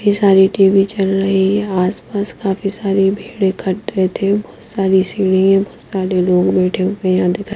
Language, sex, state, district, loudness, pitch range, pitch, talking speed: Hindi, female, Himachal Pradesh, Shimla, -15 LUFS, 190-200 Hz, 195 Hz, 190 wpm